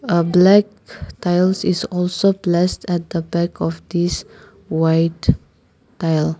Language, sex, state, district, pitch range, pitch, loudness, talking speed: English, female, Nagaland, Kohima, 170-190 Hz, 175 Hz, -18 LUFS, 120 wpm